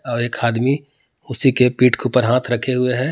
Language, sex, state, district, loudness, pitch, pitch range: Hindi, male, Jharkhand, Palamu, -17 LUFS, 125 Hz, 120-130 Hz